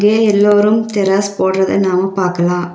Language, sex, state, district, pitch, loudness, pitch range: Tamil, female, Tamil Nadu, Nilgiris, 195 Hz, -13 LUFS, 185-205 Hz